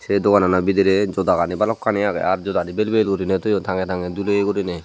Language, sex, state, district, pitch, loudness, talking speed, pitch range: Chakma, male, Tripura, Dhalai, 100 Hz, -19 LUFS, 220 wpm, 95-100 Hz